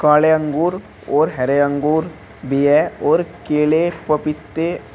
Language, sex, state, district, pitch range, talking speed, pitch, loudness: Hindi, male, Uttar Pradesh, Shamli, 145-160 Hz, 120 wpm, 150 Hz, -17 LUFS